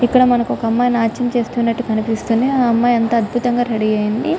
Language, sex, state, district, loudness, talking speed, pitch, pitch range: Telugu, female, Telangana, Karimnagar, -16 LUFS, 175 wpm, 235 Hz, 225-245 Hz